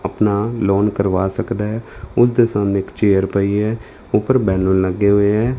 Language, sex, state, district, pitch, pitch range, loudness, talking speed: Punjabi, male, Punjab, Fazilka, 100 Hz, 100-110 Hz, -17 LUFS, 180 wpm